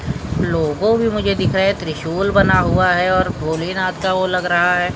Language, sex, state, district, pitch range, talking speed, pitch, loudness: Hindi, male, Maharashtra, Mumbai Suburban, 175-195 Hz, 220 wpm, 185 Hz, -17 LUFS